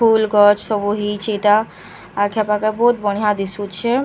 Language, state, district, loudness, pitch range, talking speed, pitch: Sambalpuri, Odisha, Sambalpur, -17 LUFS, 205-220 Hz, 145 wpm, 210 Hz